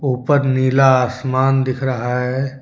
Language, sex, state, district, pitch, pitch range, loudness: Hindi, male, Jharkhand, Deoghar, 130 Hz, 125-135 Hz, -16 LUFS